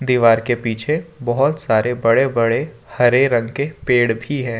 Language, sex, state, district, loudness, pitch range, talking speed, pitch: Hindi, male, Jharkhand, Ranchi, -17 LUFS, 115-140 Hz, 170 wpm, 125 Hz